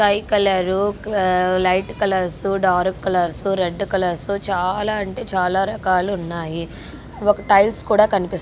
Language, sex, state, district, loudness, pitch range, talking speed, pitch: Telugu, female, Andhra Pradesh, Guntur, -19 LUFS, 180-200 Hz, 115 wpm, 190 Hz